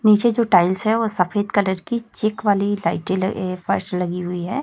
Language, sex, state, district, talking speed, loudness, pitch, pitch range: Hindi, female, Chhattisgarh, Raipur, 205 wpm, -20 LUFS, 205 Hz, 180-220 Hz